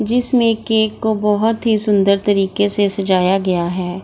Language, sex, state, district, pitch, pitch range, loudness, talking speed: Hindi, female, Bihar, Gaya, 205 Hz, 195-220 Hz, -16 LUFS, 165 wpm